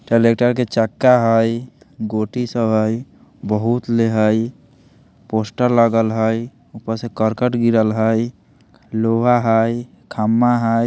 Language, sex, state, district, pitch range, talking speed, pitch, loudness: Bajjika, male, Bihar, Vaishali, 110-120 Hz, 125 wpm, 115 Hz, -18 LUFS